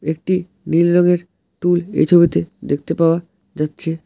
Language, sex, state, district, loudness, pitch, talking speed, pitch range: Bengali, male, West Bengal, Alipurduar, -17 LUFS, 170 Hz, 135 wpm, 160-175 Hz